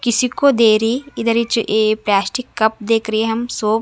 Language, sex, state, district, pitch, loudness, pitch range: Hindi, female, Chhattisgarh, Raipur, 225 Hz, -17 LUFS, 220-235 Hz